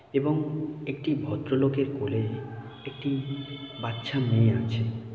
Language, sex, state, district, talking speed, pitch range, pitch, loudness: Bengali, male, West Bengal, North 24 Parganas, 105 wpm, 115-140 Hz, 135 Hz, -28 LUFS